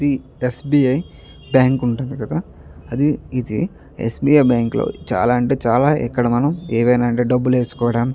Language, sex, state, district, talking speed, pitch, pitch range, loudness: Telugu, male, Andhra Pradesh, Chittoor, 160 wpm, 125 Hz, 120-135 Hz, -18 LUFS